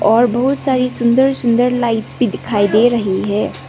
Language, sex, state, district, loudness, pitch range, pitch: Hindi, female, Sikkim, Gangtok, -15 LUFS, 220-250 Hz, 240 Hz